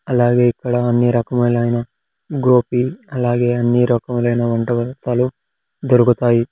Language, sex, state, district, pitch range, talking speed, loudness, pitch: Telugu, male, Andhra Pradesh, Sri Satya Sai, 120-125 Hz, 100 wpm, -17 LUFS, 120 Hz